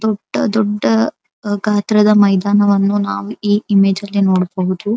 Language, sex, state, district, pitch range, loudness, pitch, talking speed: Kannada, female, Karnataka, Dharwad, 195-210 Hz, -15 LUFS, 205 Hz, 95 wpm